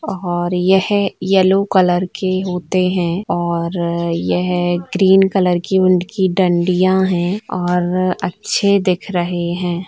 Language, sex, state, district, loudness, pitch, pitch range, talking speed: Hindi, female, Chhattisgarh, Sukma, -16 LUFS, 185 Hz, 175-190 Hz, 120 wpm